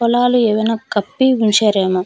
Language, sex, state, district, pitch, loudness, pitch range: Telugu, female, Andhra Pradesh, Manyam, 220 Hz, -15 LUFS, 210-245 Hz